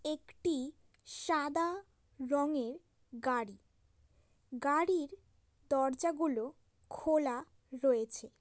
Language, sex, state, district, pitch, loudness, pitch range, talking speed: Bengali, female, West Bengal, Paschim Medinipur, 285 Hz, -35 LUFS, 255-315 Hz, 55 wpm